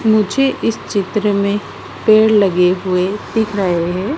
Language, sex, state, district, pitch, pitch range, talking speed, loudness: Hindi, female, Madhya Pradesh, Dhar, 205 Hz, 185-220 Hz, 145 wpm, -15 LUFS